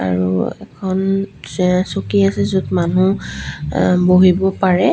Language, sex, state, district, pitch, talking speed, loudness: Assamese, female, Assam, Sonitpur, 180 Hz, 120 wpm, -16 LUFS